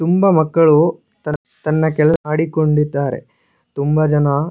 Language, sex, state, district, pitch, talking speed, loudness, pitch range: Kannada, male, Karnataka, Shimoga, 155 Hz, 95 wpm, -16 LUFS, 150-160 Hz